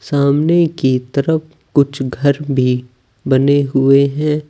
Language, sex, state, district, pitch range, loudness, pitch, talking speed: Hindi, male, Uttar Pradesh, Saharanpur, 130-150 Hz, -15 LUFS, 140 Hz, 120 wpm